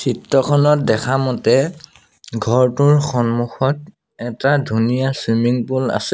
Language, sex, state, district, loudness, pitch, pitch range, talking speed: Assamese, male, Assam, Sonitpur, -17 LUFS, 130 Hz, 120-145 Hz, 100 wpm